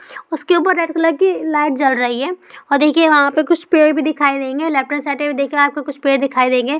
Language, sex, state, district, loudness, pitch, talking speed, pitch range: Hindi, female, West Bengal, Purulia, -15 LUFS, 290 Hz, 245 wpm, 275-320 Hz